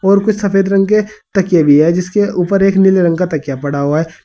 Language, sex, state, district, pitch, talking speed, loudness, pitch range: Hindi, male, Uttar Pradesh, Saharanpur, 190 Hz, 255 wpm, -13 LUFS, 160-195 Hz